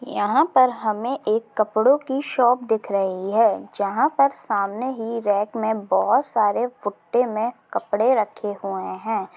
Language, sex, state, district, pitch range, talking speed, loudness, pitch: Hindi, female, Andhra Pradesh, Chittoor, 205-245 Hz, 155 wpm, -22 LUFS, 225 Hz